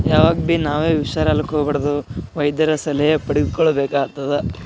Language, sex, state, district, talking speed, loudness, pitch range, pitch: Kannada, male, Karnataka, Gulbarga, 75 wpm, -18 LUFS, 145-155 Hz, 145 Hz